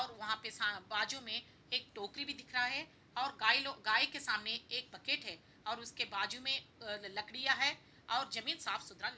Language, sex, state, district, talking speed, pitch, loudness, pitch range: Hindi, female, Bihar, Jahanabad, 205 wpm, 240 Hz, -37 LUFS, 215-270 Hz